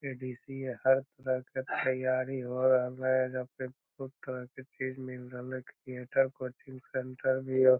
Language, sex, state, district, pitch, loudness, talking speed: Magahi, male, Bihar, Lakhisarai, 130 Hz, -33 LUFS, 145 wpm